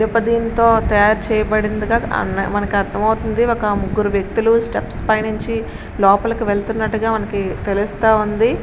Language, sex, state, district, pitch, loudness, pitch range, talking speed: Telugu, female, Andhra Pradesh, Srikakulam, 220 Hz, -17 LUFS, 205-225 Hz, 125 wpm